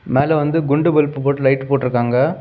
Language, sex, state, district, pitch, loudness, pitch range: Tamil, male, Tamil Nadu, Kanyakumari, 140 Hz, -17 LUFS, 135-150 Hz